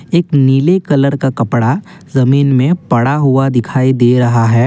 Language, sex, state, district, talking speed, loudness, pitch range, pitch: Hindi, male, Assam, Kamrup Metropolitan, 165 wpm, -12 LUFS, 125-145 Hz, 135 Hz